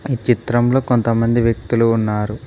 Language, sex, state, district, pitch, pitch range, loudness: Telugu, male, Telangana, Mahabubabad, 115 Hz, 115-120 Hz, -17 LUFS